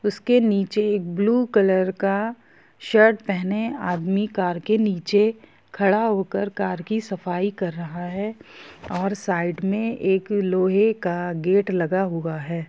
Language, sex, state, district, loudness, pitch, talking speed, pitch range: Hindi, female, Jharkhand, Sahebganj, -22 LUFS, 195 Hz, 135 wpm, 185-210 Hz